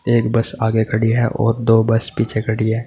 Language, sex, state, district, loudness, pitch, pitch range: Hindi, male, Uttar Pradesh, Saharanpur, -17 LUFS, 115 Hz, 110-115 Hz